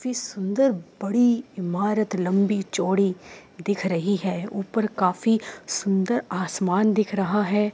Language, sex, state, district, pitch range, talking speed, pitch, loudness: Hindi, female, Uttar Pradesh, Jyotiba Phule Nagar, 190-215 Hz, 125 wpm, 200 Hz, -24 LUFS